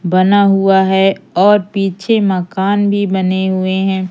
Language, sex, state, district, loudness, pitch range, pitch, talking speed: Hindi, female, Madhya Pradesh, Umaria, -13 LUFS, 190-200 Hz, 195 Hz, 145 wpm